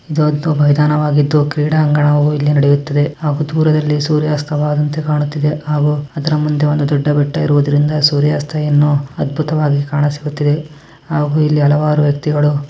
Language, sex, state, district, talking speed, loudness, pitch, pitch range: Kannada, male, Karnataka, Mysore, 115 wpm, -14 LUFS, 150 Hz, 145-150 Hz